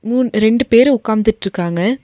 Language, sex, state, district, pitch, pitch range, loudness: Tamil, female, Tamil Nadu, Nilgiris, 220 Hz, 215-245 Hz, -14 LUFS